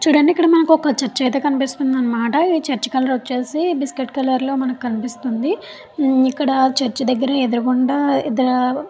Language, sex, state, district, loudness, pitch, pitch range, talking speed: Telugu, female, Andhra Pradesh, Chittoor, -18 LUFS, 265 Hz, 255-285 Hz, 150 wpm